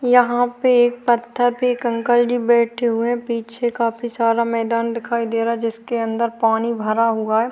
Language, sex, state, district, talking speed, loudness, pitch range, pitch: Hindi, female, Uttarakhand, Tehri Garhwal, 190 wpm, -19 LUFS, 230-240 Hz, 235 Hz